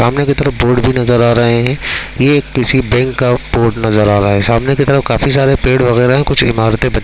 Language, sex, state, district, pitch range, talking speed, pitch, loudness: Hindi, male, Chhattisgarh, Rajnandgaon, 115-135 Hz, 245 wpm, 125 Hz, -12 LUFS